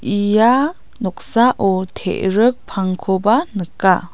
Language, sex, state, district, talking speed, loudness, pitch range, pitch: Garo, female, Meghalaya, South Garo Hills, 70 wpm, -17 LUFS, 190-235 Hz, 200 Hz